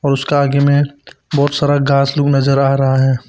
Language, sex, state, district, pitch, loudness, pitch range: Hindi, male, Arunachal Pradesh, Papum Pare, 140 Hz, -14 LUFS, 135-145 Hz